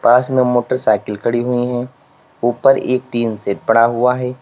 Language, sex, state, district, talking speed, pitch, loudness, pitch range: Hindi, male, Uttar Pradesh, Lalitpur, 175 wpm, 120 Hz, -16 LUFS, 115-125 Hz